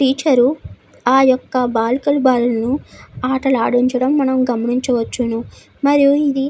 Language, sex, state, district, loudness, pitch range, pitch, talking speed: Telugu, female, Andhra Pradesh, Anantapur, -16 LUFS, 245-275 Hz, 255 Hz, 110 wpm